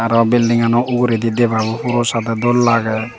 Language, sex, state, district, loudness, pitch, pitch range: Chakma, male, Tripura, Dhalai, -15 LUFS, 115 Hz, 115-120 Hz